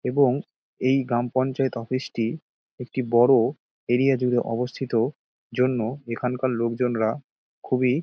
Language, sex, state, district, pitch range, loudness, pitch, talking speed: Bengali, male, West Bengal, Dakshin Dinajpur, 120-130 Hz, -24 LUFS, 125 Hz, 120 wpm